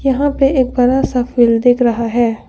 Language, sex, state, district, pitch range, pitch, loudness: Hindi, female, Arunachal Pradesh, Longding, 235-265 Hz, 245 Hz, -14 LUFS